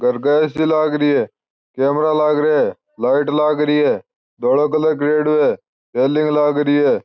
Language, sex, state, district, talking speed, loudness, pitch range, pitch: Marwari, male, Rajasthan, Churu, 185 wpm, -17 LUFS, 145-155 Hz, 150 Hz